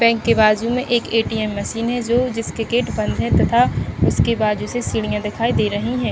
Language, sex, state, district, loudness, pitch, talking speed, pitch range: Hindi, female, Chhattisgarh, Bilaspur, -19 LUFS, 230 Hz, 215 wpm, 215-240 Hz